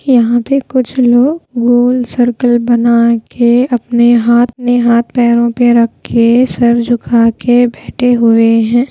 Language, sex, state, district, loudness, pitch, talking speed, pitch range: Hindi, female, Bihar, Patna, -10 LUFS, 240 Hz, 150 wpm, 235-245 Hz